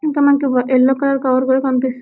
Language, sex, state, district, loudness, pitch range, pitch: Telugu, female, Telangana, Karimnagar, -15 LUFS, 255-275 Hz, 265 Hz